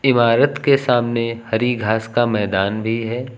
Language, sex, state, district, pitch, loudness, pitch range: Hindi, male, Uttar Pradesh, Lucknow, 115 Hz, -18 LUFS, 110-125 Hz